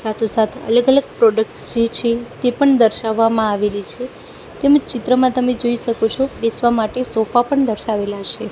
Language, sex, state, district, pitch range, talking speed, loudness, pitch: Gujarati, female, Gujarat, Gandhinagar, 220-255 Hz, 175 wpm, -17 LUFS, 235 Hz